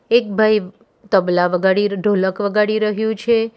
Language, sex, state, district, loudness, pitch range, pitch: Gujarati, female, Gujarat, Valsad, -17 LUFS, 195-220 Hz, 210 Hz